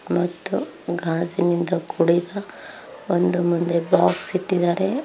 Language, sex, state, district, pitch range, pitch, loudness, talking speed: Kannada, female, Karnataka, Koppal, 170-185 Hz, 175 Hz, -21 LUFS, 85 wpm